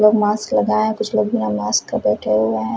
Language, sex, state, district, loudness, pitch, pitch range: Hindi, female, Chhattisgarh, Raipur, -18 LUFS, 110 Hz, 105-110 Hz